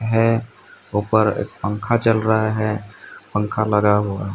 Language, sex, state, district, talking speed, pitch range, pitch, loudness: Hindi, male, Odisha, Sambalpur, 125 wpm, 105-110 Hz, 110 Hz, -20 LUFS